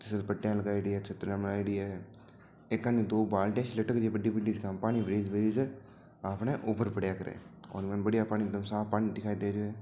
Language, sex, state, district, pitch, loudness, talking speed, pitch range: Marwari, male, Rajasthan, Churu, 105 Hz, -33 LUFS, 200 wpm, 100-110 Hz